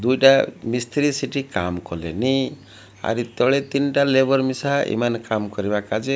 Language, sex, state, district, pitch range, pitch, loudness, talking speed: Odia, male, Odisha, Malkangiri, 105-135 Hz, 125 Hz, -21 LUFS, 145 wpm